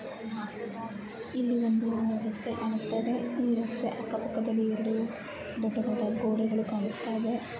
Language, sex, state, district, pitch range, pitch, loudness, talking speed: Kannada, female, Karnataka, Bellary, 220-230 Hz, 225 Hz, -31 LUFS, 105 wpm